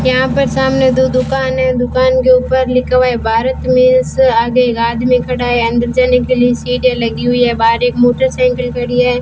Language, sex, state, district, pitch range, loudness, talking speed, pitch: Hindi, female, Rajasthan, Bikaner, 245-255 Hz, -12 LUFS, 220 wpm, 250 Hz